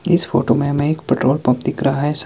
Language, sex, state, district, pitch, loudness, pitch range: Hindi, male, Himachal Pradesh, Shimla, 140 Hz, -17 LUFS, 130-150 Hz